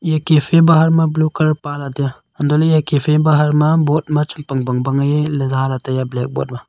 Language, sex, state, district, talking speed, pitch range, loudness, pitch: Wancho, male, Arunachal Pradesh, Longding, 235 wpm, 135-155 Hz, -16 LUFS, 150 Hz